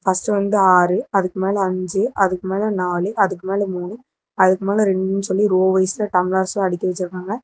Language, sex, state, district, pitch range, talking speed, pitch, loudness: Tamil, female, Tamil Nadu, Namakkal, 185-200 Hz, 170 wpm, 190 Hz, -19 LUFS